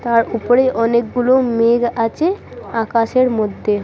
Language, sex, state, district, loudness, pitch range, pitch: Bengali, female, West Bengal, Purulia, -16 LUFS, 230-250 Hz, 235 Hz